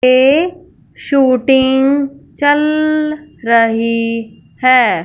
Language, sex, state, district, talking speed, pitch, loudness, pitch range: Hindi, female, Punjab, Fazilka, 60 wpm, 265 Hz, -13 LUFS, 240-300 Hz